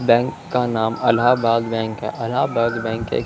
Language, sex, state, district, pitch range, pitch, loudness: Hindi, male, Chandigarh, Chandigarh, 110-120 Hz, 115 Hz, -20 LUFS